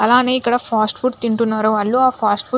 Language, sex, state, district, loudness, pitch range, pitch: Telugu, female, Andhra Pradesh, Anantapur, -16 LUFS, 215-255 Hz, 235 Hz